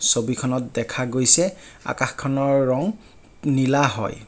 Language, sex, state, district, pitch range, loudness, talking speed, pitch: Assamese, male, Assam, Kamrup Metropolitan, 125-140 Hz, -21 LUFS, 100 wpm, 130 Hz